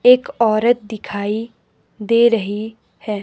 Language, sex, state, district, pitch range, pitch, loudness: Hindi, female, Himachal Pradesh, Shimla, 210-235 Hz, 220 Hz, -18 LUFS